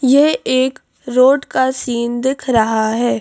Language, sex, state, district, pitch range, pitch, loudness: Hindi, female, Madhya Pradesh, Bhopal, 235-265 Hz, 255 Hz, -15 LUFS